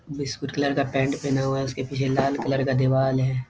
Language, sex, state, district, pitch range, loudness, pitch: Hindi, male, Bihar, Jahanabad, 135-140 Hz, -24 LUFS, 135 Hz